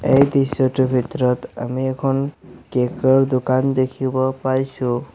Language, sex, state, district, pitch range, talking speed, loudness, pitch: Assamese, male, Assam, Sonitpur, 130-135 Hz, 115 wpm, -19 LUFS, 130 Hz